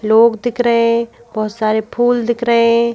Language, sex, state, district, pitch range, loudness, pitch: Hindi, female, Madhya Pradesh, Bhopal, 225-235 Hz, -15 LUFS, 235 Hz